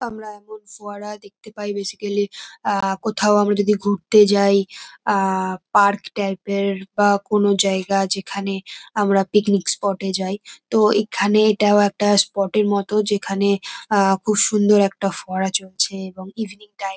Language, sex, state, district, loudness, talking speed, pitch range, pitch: Bengali, female, West Bengal, North 24 Parganas, -19 LUFS, 150 wpm, 195-210 Hz, 200 Hz